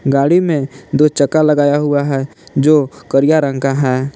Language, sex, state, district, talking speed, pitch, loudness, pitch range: Hindi, male, Jharkhand, Palamu, 185 wpm, 140 Hz, -14 LUFS, 135-150 Hz